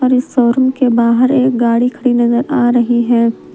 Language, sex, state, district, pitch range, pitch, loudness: Hindi, female, Jharkhand, Palamu, 235-255 Hz, 245 Hz, -12 LUFS